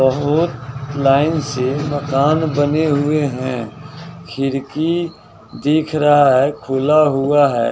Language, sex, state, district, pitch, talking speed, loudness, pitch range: Hindi, male, Bihar, West Champaran, 145 Hz, 110 wpm, -16 LUFS, 135-150 Hz